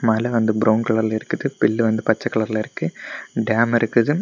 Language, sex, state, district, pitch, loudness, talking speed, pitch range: Tamil, male, Tamil Nadu, Kanyakumari, 110 Hz, -20 LUFS, 170 wpm, 110-115 Hz